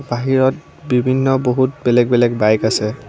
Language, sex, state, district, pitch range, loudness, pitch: Assamese, female, Assam, Kamrup Metropolitan, 120-130 Hz, -16 LUFS, 125 Hz